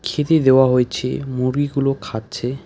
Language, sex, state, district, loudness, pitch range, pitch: Bengali, male, West Bengal, Alipurduar, -18 LUFS, 125-140 Hz, 130 Hz